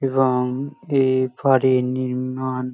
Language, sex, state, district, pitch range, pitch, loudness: Bengali, male, West Bengal, Malda, 125-135 Hz, 130 Hz, -20 LUFS